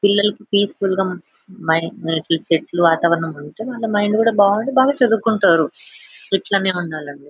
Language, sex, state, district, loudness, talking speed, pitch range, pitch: Telugu, female, Telangana, Nalgonda, -18 LUFS, 100 wpm, 165-210 Hz, 195 Hz